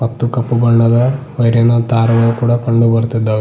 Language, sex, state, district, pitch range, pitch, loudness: Kannada, male, Karnataka, Bidar, 115-120 Hz, 115 Hz, -13 LUFS